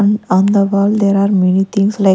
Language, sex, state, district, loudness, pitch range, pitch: English, female, Punjab, Kapurthala, -13 LUFS, 190-200 Hz, 200 Hz